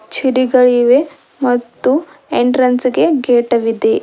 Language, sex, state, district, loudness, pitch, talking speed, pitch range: Kannada, female, Karnataka, Bidar, -13 LUFS, 255 Hz, 90 wpm, 245-275 Hz